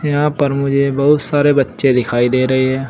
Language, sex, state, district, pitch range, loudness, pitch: Hindi, male, Uttar Pradesh, Saharanpur, 130-145 Hz, -14 LUFS, 140 Hz